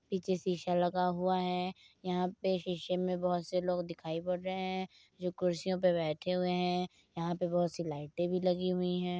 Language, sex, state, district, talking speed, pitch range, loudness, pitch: Hindi, female, Uttar Pradesh, Muzaffarnagar, 200 wpm, 175-185 Hz, -34 LUFS, 180 Hz